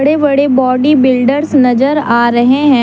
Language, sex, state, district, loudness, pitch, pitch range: Hindi, female, Jharkhand, Deoghar, -10 LUFS, 265 Hz, 255-285 Hz